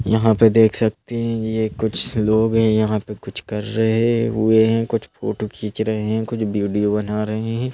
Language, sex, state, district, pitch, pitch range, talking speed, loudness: Hindi, male, Madhya Pradesh, Bhopal, 110 Hz, 105-115 Hz, 200 wpm, -19 LUFS